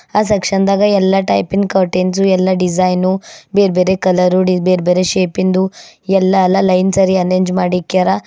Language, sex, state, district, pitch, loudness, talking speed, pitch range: Kannada, female, Karnataka, Bidar, 185 Hz, -13 LUFS, 150 wpm, 185-195 Hz